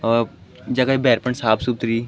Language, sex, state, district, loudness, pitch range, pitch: Garhwali, male, Uttarakhand, Tehri Garhwal, -20 LUFS, 115-125 Hz, 120 Hz